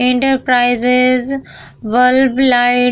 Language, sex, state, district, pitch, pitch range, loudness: Hindi, female, Bihar, Vaishali, 250 Hz, 245-260 Hz, -12 LUFS